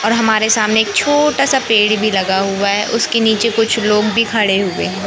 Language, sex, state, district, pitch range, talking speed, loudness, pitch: Hindi, male, Madhya Pradesh, Katni, 210-230 Hz, 215 wpm, -14 LUFS, 220 Hz